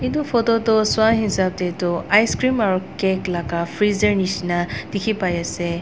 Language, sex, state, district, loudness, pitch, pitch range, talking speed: Nagamese, female, Nagaland, Dimapur, -20 LUFS, 195 Hz, 175-220 Hz, 195 wpm